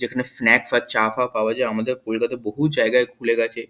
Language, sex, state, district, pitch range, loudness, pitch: Bengali, male, West Bengal, Kolkata, 110-125 Hz, -20 LUFS, 120 Hz